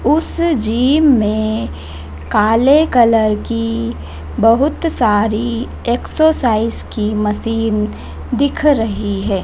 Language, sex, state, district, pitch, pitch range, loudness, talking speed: Hindi, female, Madhya Pradesh, Dhar, 225 Hz, 210-255 Hz, -15 LUFS, 90 wpm